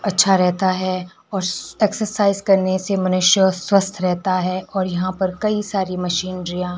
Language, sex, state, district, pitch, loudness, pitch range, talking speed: Hindi, male, Himachal Pradesh, Shimla, 185 Hz, -19 LUFS, 185-195 Hz, 160 wpm